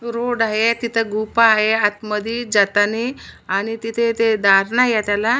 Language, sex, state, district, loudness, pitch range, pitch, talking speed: Marathi, female, Maharashtra, Nagpur, -18 LUFS, 210-235 Hz, 225 Hz, 155 wpm